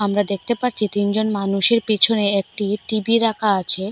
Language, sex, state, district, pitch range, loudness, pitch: Bengali, female, Assam, Hailakandi, 200-220 Hz, -19 LUFS, 210 Hz